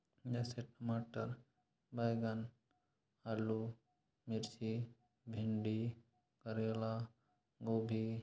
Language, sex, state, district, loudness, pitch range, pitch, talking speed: Hindi, male, Chhattisgarh, Korba, -43 LUFS, 110-120 Hz, 115 Hz, 65 wpm